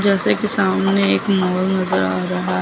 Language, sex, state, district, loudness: Hindi, female, Chandigarh, Chandigarh, -17 LUFS